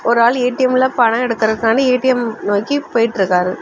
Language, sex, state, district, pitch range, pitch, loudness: Tamil, female, Tamil Nadu, Kanyakumari, 220-255 Hz, 235 Hz, -15 LUFS